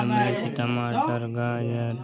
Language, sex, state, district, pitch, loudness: Hindi, male, Uttar Pradesh, Hamirpur, 120 Hz, -26 LUFS